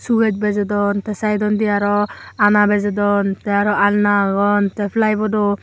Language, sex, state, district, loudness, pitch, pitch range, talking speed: Chakma, female, Tripura, Unakoti, -17 LUFS, 205 Hz, 205-210 Hz, 160 wpm